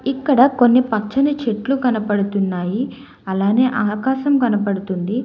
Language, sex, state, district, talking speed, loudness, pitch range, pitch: Telugu, female, Telangana, Hyderabad, 90 wpm, -18 LUFS, 205-265 Hz, 235 Hz